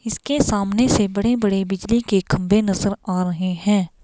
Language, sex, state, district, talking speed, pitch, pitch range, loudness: Hindi, female, Himachal Pradesh, Shimla, 165 wpm, 200 Hz, 190-220 Hz, -20 LUFS